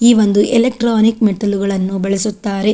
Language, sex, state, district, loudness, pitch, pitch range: Kannada, female, Karnataka, Dakshina Kannada, -14 LUFS, 210 Hz, 200-230 Hz